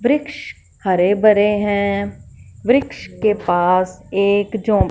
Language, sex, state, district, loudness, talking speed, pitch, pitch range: Hindi, female, Punjab, Fazilka, -17 LUFS, 110 wpm, 205 Hz, 195-215 Hz